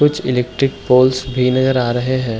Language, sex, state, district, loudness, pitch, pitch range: Hindi, male, Uttar Pradesh, Hamirpur, -16 LUFS, 130 Hz, 125-130 Hz